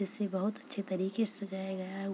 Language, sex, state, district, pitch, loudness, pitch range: Hindi, female, Bihar, Purnia, 195 Hz, -36 LUFS, 190-205 Hz